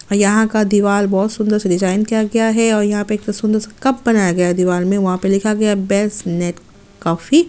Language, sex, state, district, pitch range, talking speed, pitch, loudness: Hindi, female, Chhattisgarh, Sukma, 190-215 Hz, 240 wpm, 205 Hz, -16 LUFS